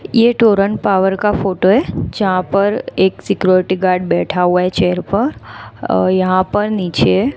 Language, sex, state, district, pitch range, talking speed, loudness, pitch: Hindi, female, Gujarat, Gandhinagar, 185-205 Hz, 165 wpm, -15 LUFS, 190 Hz